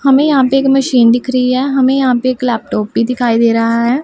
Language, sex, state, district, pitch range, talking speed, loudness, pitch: Hindi, female, Punjab, Pathankot, 235-270 Hz, 265 wpm, -12 LUFS, 255 Hz